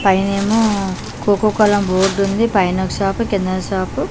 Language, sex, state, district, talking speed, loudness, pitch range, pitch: Telugu, female, Andhra Pradesh, Manyam, 130 wpm, -17 LUFS, 190-205 Hz, 200 Hz